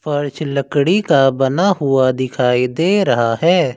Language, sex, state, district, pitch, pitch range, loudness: Hindi, male, Uttar Pradesh, Lucknow, 140 Hz, 130-170 Hz, -15 LUFS